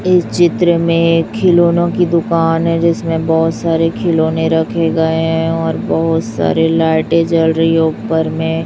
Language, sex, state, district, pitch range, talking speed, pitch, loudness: Hindi, male, Chhattisgarh, Raipur, 160-170 Hz, 160 wpm, 165 Hz, -13 LUFS